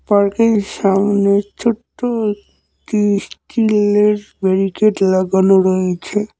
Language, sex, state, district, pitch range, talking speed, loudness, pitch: Bengali, male, West Bengal, Cooch Behar, 195-215 Hz, 65 wpm, -16 LUFS, 205 Hz